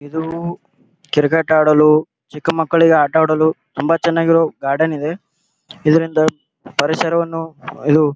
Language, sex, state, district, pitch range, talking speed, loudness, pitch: Kannada, male, Karnataka, Gulbarga, 155-165 Hz, 95 wpm, -16 LUFS, 160 Hz